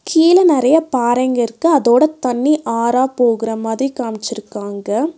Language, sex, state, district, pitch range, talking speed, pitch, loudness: Tamil, female, Tamil Nadu, Nilgiris, 225-305 Hz, 105 wpm, 250 Hz, -15 LUFS